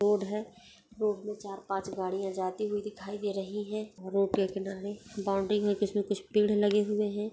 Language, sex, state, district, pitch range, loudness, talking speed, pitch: Hindi, female, Bihar, Begusarai, 195-210 Hz, -32 LUFS, 195 wpm, 205 Hz